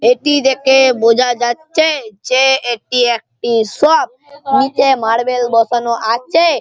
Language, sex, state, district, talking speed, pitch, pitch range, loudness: Bengali, male, West Bengal, Malda, 110 wpm, 250 Hz, 235-275 Hz, -13 LUFS